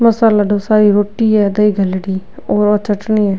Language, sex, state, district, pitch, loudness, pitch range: Rajasthani, female, Rajasthan, Nagaur, 205 Hz, -13 LUFS, 200-215 Hz